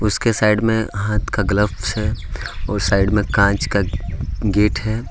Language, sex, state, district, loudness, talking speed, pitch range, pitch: Hindi, male, Jharkhand, Ranchi, -19 LUFS, 165 wpm, 95-105 Hz, 105 Hz